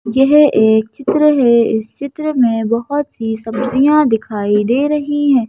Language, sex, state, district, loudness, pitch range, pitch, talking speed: Hindi, female, Madhya Pradesh, Bhopal, -14 LUFS, 225-290 Hz, 250 Hz, 155 wpm